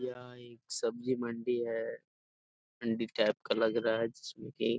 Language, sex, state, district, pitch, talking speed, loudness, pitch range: Hindi, male, Bihar, Jamui, 120 Hz, 175 wpm, -34 LUFS, 115-125 Hz